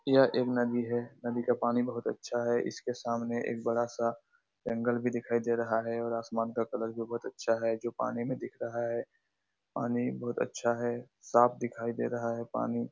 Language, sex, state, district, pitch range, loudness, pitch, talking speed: Hindi, male, Bihar, Araria, 115-120 Hz, -32 LUFS, 120 Hz, 210 wpm